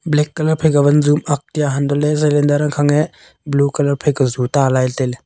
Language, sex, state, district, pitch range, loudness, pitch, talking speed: Wancho, male, Arunachal Pradesh, Longding, 140-150 Hz, -16 LUFS, 145 Hz, 250 wpm